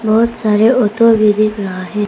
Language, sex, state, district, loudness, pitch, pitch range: Hindi, female, Arunachal Pradesh, Papum Pare, -13 LUFS, 215 Hz, 210-230 Hz